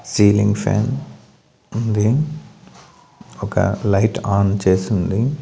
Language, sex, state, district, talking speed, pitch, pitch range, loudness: Telugu, male, Andhra Pradesh, Manyam, 90 wpm, 105 Hz, 100-115 Hz, -18 LUFS